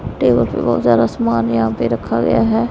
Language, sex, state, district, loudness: Hindi, female, Punjab, Pathankot, -16 LUFS